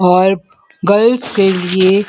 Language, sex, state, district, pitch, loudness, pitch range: Hindi, female, Uttar Pradesh, Muzaffarnagar, 195 Hz, -13 LUFS, 185-215 Hz